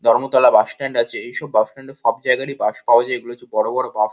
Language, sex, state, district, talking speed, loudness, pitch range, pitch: Bengali, male, West Bengal, Kolkata, 230 wpm, -18 LUFS, 115-130 Hz, 120 Hz